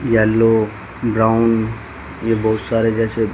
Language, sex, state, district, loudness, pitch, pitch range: Hindi, male, Haryana, Charkhi Dadri, -17 LUFS, 110 Hz, 110-115 Hz